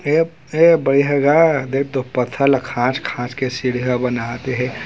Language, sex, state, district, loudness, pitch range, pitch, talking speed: Chhattisgarhi, male, Chhattisgarh, Raigarh, -17 LUFS, 125-145 Hz, 130 Hz, 160 wpm